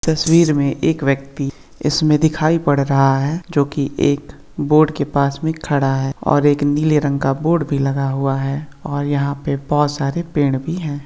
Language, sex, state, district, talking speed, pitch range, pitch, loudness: Hindi, male, Uttar Pradesh, Varanasi, 195 wpm, 140-155 Hz, 145 Hz, -17 LUFS